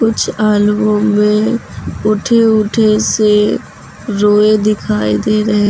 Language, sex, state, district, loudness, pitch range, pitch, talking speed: Hindi, female, Uttar Pradesh, Lucknow, -12 LUFS, 210-215 Hz, 210 Hz, 115 wpm